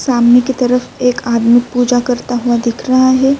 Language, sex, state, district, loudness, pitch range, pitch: Urdu, female, Uttar Pradesh, Budaun, -12 LUFS, 240-255 Hz, 245 Hz